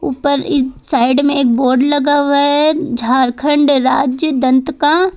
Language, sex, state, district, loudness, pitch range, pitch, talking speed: Hindi, female, Jharkhand, Ranchi, -13 LUFS, 260-295 Hz, 280 Hz, 150 wpm